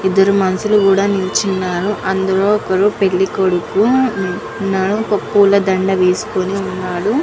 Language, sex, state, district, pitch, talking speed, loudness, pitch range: Telugu, female, Andhra Pradesh, Guntur, 195 Hz, 125 wpm, -15 LUFS, 190-205 Hz